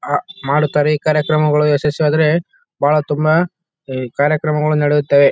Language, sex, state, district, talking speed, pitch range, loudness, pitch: Kannada, male, Karnataka, Bellary, 100 wpm, 145-155 Hz, -16 LUFS, 150 Hz